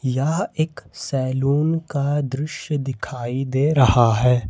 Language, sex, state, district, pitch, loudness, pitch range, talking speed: Hindi, male, Jharkhand, Ranchi, 135 Hz, -21 LUFS, 130-150 Hz, 120 wpm